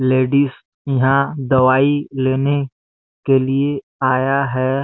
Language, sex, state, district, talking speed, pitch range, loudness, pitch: Hindi, male, Chhattisgarh, Bastar, 100 wpm, 130-140 Hz, -17 LUFS, 135 Hz